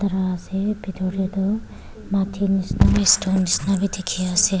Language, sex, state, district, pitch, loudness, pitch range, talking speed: Nagamese, female, Nagaland, Dimapur, 190 Hz, -21 LUFS, 185-195 Hz, 170 wpm